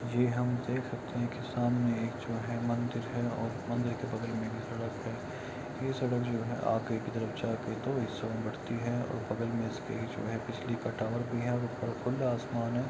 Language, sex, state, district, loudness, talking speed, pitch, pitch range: Hindi, male, Bihar, Saran, -34 LUFS, 205 wpm, 120 Hz, 115-125 Hz